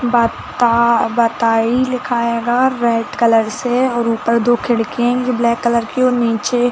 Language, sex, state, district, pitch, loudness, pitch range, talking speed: Hindi, female, Chhattisgarh, Rajnandgaon, 235 Hz, -15 LUFS, 235-245 Hz, 185 wpm